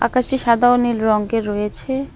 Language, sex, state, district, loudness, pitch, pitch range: Bengali, female, West Bengal, Alipurduar, -17 LUFS, 235 Hz, 215-255 Hz